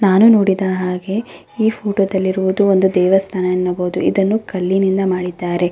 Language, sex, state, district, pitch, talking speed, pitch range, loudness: Kannada, female, Karnataka, Raichur, 190 Hz, 125 wpm, 180-195 Hz, -16 LUFS